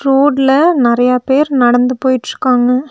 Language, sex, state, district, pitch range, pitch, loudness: Tamil, female, Tamil Nadu, Nilgiris, 250-280 Hz, 260 Hz, -12 LUFS